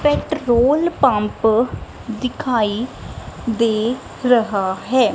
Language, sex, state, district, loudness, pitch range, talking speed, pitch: Punjabi, female, Punjab, Kapurthala, -18 LUFS, 220-260 Hz, 70 wpm, 240 Hz